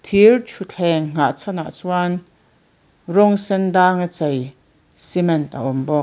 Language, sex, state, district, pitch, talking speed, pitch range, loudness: Mizo, female, Mizoram, Aizawl, 175 Hz, 130 wpm, 150-195 Hz, -18 LUFS